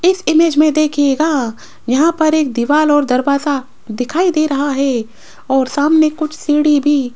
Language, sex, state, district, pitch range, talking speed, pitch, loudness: Hindi, female, Rajasthan, Jaipur, 270-310 Hz, 165 wpm, 290 Hz, -14 LUFS